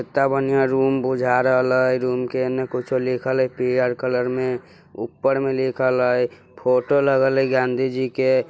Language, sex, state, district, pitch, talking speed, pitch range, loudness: Bajjika, male, Bihar, Vaishali, 130 Hz, 170 wpm, 125-130 Hz, -20 LUFS